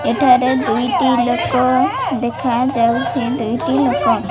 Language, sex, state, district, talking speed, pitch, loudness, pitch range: Odia, female, Odisha, Malkangiri, 100 wpm, 250 Hz, -16 LUFS, 235-255 Hz